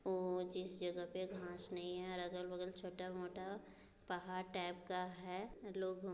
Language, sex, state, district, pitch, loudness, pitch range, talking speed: Hindi, female, Bihar, Muzaffarpur, 185 Hz, -46 LUFS, 180-185 Hz, 145 wpm